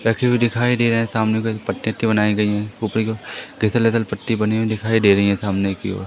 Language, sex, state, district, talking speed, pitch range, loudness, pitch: Hindi, male, Madhya Pradesh, Umaria, 285 wpm, 105-115 Hz, -19 LUFS, 110 Hz